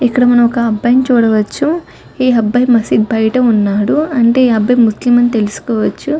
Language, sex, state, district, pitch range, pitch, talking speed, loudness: Telugu, female, Telangana, Karimnagar, 220-250 Hz, 240 Hz, 155 wpm, -12 LUFS